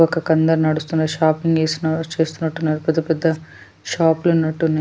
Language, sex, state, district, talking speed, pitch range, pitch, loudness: Telugu, female, Telangana, Nalgonda, 150 wpm, 155-165 Hz, 160 Hz, -19 LUFS